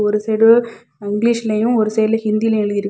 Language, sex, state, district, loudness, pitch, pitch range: Tamil, female, Tamil Nadu, Kanyakumari, -16 LUFS, 220 Hz, 210-225 Hz